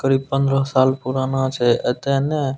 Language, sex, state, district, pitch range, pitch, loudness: Maithili, male, Bihar, Purnia, 130-135 Hz, 135 Hz, -19 LUFS